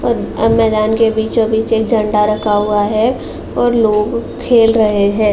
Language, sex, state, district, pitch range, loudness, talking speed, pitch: Hindi, female, Uttar Pradesh, Jalaun, 210-225 Hz, -14 LUFS, 155 wpm, 220 Hz